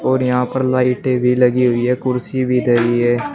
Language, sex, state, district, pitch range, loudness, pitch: Hindi, male, Uttar Pradesh, Shamli, 125-130 Hz, -16 LUFS, 125 Hz